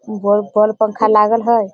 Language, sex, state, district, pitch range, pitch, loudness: Hindi, female, Bihar, Sitamarhi, 210-220 Hz, 215 Hz, -14 LUFS